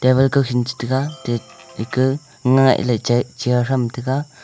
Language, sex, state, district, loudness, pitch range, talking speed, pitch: Wancho, male, Arunachal Pradesh, Longding, -19 LUFS, 120-135 Hz, 95 wpm, 130 Hz